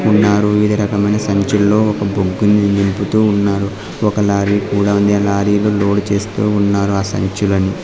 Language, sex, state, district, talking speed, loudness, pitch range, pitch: Telugu, male, Andhra Pradesh, Sri Satya Sai, 145 wpm, -15 LUFS, 100-105 Hz, 100 Hz